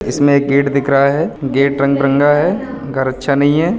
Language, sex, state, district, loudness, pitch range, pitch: Hindi, male, Uttar Pradesh, Budaun, -14 LUFS, 140-145 Hz, 140 Hz